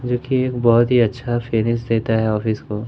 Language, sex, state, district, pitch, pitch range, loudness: Hindi, male, Madhya Pradesh, Umaria, 115 Hz, 110-120 Hz, -18 LUFS